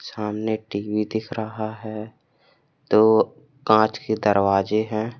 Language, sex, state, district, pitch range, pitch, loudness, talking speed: Hindi, male, Uttar Pradesh, Lalitpur, 105-110 Hz, 110 Hz, -22 LUFS, 125 wpm